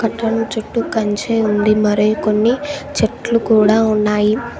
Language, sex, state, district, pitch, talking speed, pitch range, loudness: Telugu, female, Telangana, Mahabubabad, 220 Hz, 115 wpm, 210-230 Hz, -16 LUFS